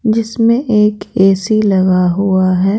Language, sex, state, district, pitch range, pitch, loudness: Hindi, female, Bihar, Patna, 190-220 Hz, 200 Hz, -12 LUFS